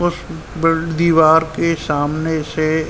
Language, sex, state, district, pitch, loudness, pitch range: Hindi, male, Uttar Pradesh, Ghazipur, 160 Hz, -16 LUFS, 155-165 Hz